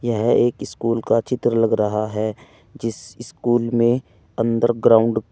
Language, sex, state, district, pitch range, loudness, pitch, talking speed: Hindi, male, Uttar Pradesh, Saharanpur, 110-120 Hz, -20 LUFS, 115 Hz, 160 wpm